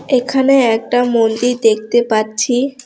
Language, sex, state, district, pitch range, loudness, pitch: Bengali, female, West Bengal, Alipurduar, 225-255 Hz, -14 LUFS, 245 Hz